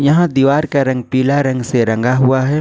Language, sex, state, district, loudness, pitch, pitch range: Hindi, male, Jharkhand, Ranchi, -14 LUFS, 130 Hz, 130-140 Hz